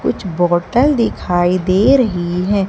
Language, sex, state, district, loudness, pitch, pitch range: Hindi, female, Madhya Pradesh, Umaria, -15 LUFS, 185 Hz, 175-230 Hz